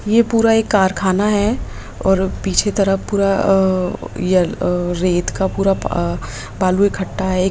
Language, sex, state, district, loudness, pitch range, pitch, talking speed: Hindi, female, Jharkhand, Sahebganj, -17 LUFS, 185-205 Hz, 195 Hz, 145 wpm